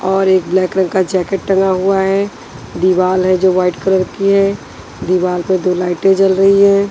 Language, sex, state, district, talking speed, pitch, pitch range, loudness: Hindi, female, Punjab, Pathankot, 200 wpm, 190 Hz, 185-195 Hz, -13 LUFS